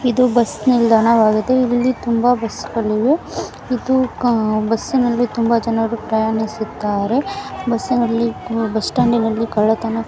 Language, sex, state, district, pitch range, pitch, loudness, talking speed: Kannada, female, Karnataka, Mysore, 220-250 Hz, 230 Hz, -17 LUFS, 120 wpm